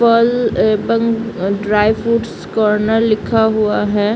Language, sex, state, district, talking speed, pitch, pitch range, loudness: Hindi, female, Bihar, Samastipur, 115 wpm, 220 Hz, 210-230 Hz, -15 LUFS